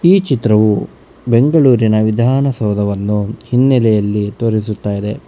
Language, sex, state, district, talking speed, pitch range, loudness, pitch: Kannada, male, Karnataka, Bangalore, 80 wpm, 105-130 Hz, -14 LUFS, 110 Hz